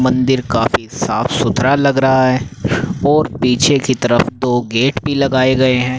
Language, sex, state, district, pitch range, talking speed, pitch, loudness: Hindi, male, Haryana, Rohtak, 125-140 Hz, 170 wpm, 130 Hz, -14 LUFS